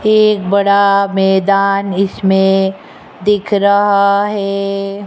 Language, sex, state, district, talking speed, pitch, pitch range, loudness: Hindi, female, Rajasthan, Jaipur, 85 wpm, 200 Hz, 195-205 Hz, -13 LUFS